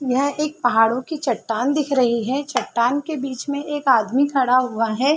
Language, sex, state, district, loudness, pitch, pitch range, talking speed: Hindi, female, Bihar, Sitamarhi, -20 LUFS, 265 Hz, 245-285 Hz, 195 wpm